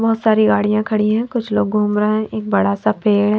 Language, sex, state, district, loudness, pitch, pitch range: Hindi, female, Haryana, Charkhi Dadri, -17 LUFS, 215 Hz, 210-220 Hz